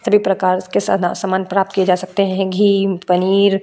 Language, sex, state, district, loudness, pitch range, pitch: Hindi, female, Uttar Pradesh, Budaun, -16 LUFS, 185-195 Hz, 195 Hz